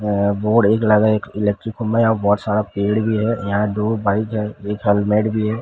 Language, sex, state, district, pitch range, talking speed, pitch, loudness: Hindi, male, Odisha, Sambalpur, 105-110 Hz, 225 wpm, 105 Hz, -18 LUFS